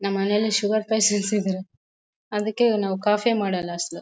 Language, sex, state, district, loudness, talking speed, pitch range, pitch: Kannada, female, Karnataka, Bellary, -23 LUFS, 165 wpm, 195-215 Hz, 210 Hz